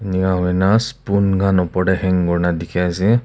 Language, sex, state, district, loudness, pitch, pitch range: Nagamese, male, Nagaland, Kohima, -17 LUFS, 95 Hz, 90-100 Hz